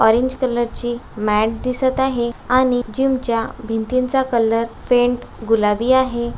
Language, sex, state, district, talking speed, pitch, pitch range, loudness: Marathi, female, Maharashtra, Aurangabad, 120 wpm, 240 Hz, 230-255 Hz, -19 LUFS